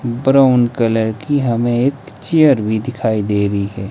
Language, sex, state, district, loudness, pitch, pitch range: Hindi, male, Himachal Pradesh, Shimla, -15 LUFS, 120 Hz, 110-135 Hz